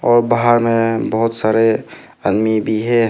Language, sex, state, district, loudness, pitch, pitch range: Hindi, male, Arunachal Pradesh, Papum Pare, -16 LUFS, 115 Hz, 110-120 Hz